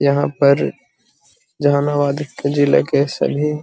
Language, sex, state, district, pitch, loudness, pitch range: Magahi, male, Bihar, Gaya, 145 Hz, -17 LUFS, 140-145 Hz